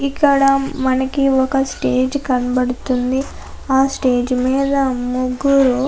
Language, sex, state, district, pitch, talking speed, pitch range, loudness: Telugu, female, Andhra Pradesh, Anantapur, 265 Hz, 90 wpm, 255-275 Hz, -17 LUFS